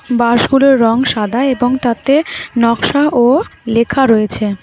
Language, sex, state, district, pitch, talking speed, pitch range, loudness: Bengali, female, West Bengal, Alipurduar, 240 Hz, 115 wpm, 230-270 Hz, -13 LUFS